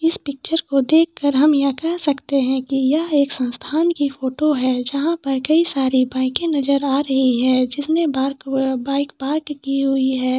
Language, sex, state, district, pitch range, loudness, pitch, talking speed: Hindi, female, Jharkhand, Sahebganj, 265-300 Hz, -19 LUFS, 275 Hz, 190 wpm